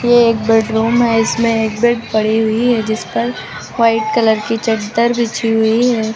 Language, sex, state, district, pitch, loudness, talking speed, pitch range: Hindi, female, Uttar Pradesh, Lucknow, 225 Hz, -14 LUFS, 185 wpm, 220-235 Hz